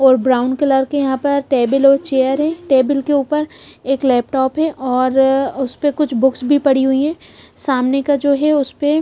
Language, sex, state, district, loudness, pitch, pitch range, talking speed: Hindi, female, Punjab, Pathankot, -15 LUFS, 275 Hz, 265-290 Hz, 205 wpm